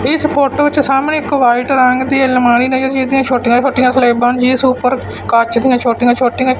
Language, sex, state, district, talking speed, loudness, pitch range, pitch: Punjabi, male, Punjab, Fazilka, 200 wpm, -12 LUFS, 245-270 Hz, 255 Hz